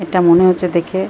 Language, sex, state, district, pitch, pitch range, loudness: Bengali, male, Jharkhand, Jamtara, 180 Hz, 170-185 Hz, -13 LUFS